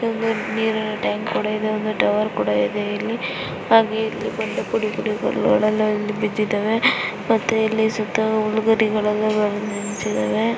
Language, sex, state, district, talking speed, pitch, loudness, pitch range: Kannada, female, Karnataka, Chamarajanagar, 140 wpm, 215 Hz, -21 LUFS, 210-220 Hz